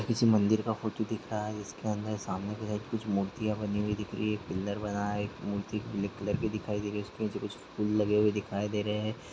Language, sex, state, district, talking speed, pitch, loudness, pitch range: Hindi, male, Bihar, Gaya, 270 wpm, 105 Hz, -32 LUFS, 105-110 Hz